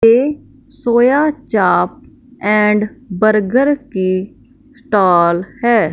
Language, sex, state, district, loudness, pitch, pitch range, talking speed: Hindi, male, Punjab, Fazilka, -14 LUFS, 230 Hz, 205-270 Hz, 80 wpm